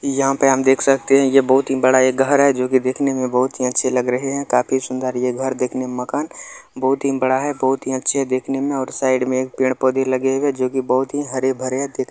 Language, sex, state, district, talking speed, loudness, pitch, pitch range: Maithili, male, Bihar, Kishanganj, 270 wpm, -18 LUFS, 130 Hz, 130-135 Hz